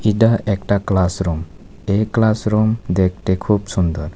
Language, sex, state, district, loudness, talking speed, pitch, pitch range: Bengali, male, Tripura, West Tripura, -18 LUFS, 115 wpm, 100 Hz, 95-110 Hz